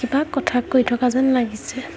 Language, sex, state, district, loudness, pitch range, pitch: Assamese, female, Assam, Hailakandi, -20 LUFS, 245-275 Hz, 255 Hz